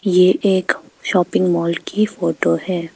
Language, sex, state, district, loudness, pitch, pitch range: Hindi, female, Arunachal Pradesh, Papum Pare, -18 LUFS, 180 Hz, 170-190 Hz